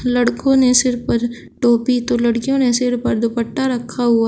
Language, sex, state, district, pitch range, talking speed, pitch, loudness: Hindi, male, Uttar Pradesh, Shamli, 235-255 Hz, 180 wpm, 245 Hz, -17 LUFS